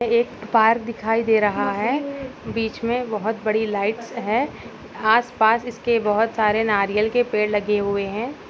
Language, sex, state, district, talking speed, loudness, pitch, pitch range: Hindi, female, Uttar Pradesh, Gorakhpur, 155 wpm, -21 LUFS, 225 Hz, 210-235 Hz